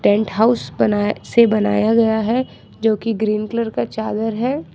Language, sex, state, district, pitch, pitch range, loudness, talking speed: Hindi, female, Jharkhand, Ranchi, 220 Hz, 215-230 Hz, -18 LUFS, 165 wpm